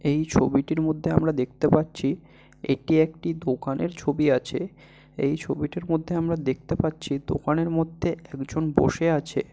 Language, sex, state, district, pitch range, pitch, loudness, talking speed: Bengali, male, West Bengal, Malda, 140-165 Hz, 155 Hz, -25 LUFS, 140 wpm